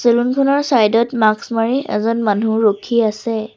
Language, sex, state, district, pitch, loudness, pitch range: Assamese, female, Assam, Sonitpur, 230 Hz, -16 LUFS, 215-240 Hz